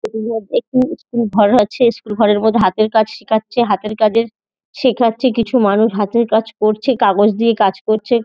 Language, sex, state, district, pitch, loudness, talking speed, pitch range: Bengali, female, West Bengal, North 24 Parganas, 220 Hz, -15 LUFS, 160 wpm, 215-235 Hz